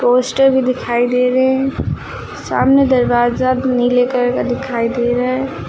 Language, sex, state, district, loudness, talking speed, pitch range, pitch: Hindi, female, Uttar Pradesh, Lucknow, -15 LUFS, 160 wpm, 245-260 Hz, 250 Hz